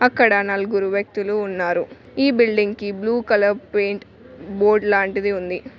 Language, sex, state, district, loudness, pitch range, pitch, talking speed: Telugu, female, Telangana, Mahabubabad, -19 LUFS, 200-215 Hz, 205 Hz, 135 wpm